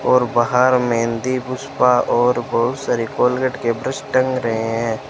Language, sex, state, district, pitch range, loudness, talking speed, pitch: Hindi, male, Rajasthan, Bikaner, 115-130 Hz, -18 LUFS, 150 wpm, 125 Hz